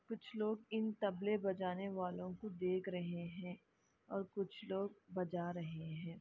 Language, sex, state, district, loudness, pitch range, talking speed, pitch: Hindi, female, Chhattisgarh, Bastar, -43 LUFS, 180-205 Hz, 155 wpm, 185 Hz